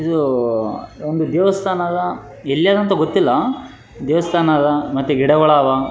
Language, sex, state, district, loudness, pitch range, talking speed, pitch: Kannada, male, Karnataka, Raichur, -17 LUFS, 140-180 Hz, 110 wpm, 155 Hz